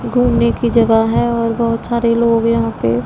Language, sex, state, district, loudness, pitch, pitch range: Hindi, female, Punjab, Pathankot, -14 LUFS, 230 Hz, 220-235 Hz